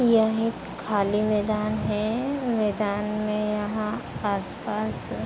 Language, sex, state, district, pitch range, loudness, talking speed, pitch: Hindi, female, Uttar Pradesh, Hamirpur, 210-220 Hz, -26 LUFS, 115 wpm, 210 Hz